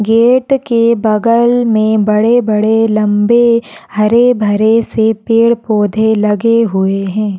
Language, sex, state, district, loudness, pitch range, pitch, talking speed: Hindi, female, Bihar, Saharsa, -11 LUFS, 210-230 Hz, 220 Hz, 100 wpm